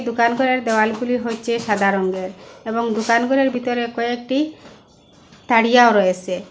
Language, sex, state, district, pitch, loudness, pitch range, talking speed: Bengali, female, Assam, Hailakandi, 235 Hz, -18 LUFS, 215-245 Hz, 120 wpm